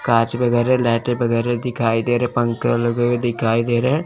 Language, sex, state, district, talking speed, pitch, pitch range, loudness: Hindi, male, Chandigarh, Chandigarh, 190 wpm, 120 Hz, 115-120 Hz, -19 LUFS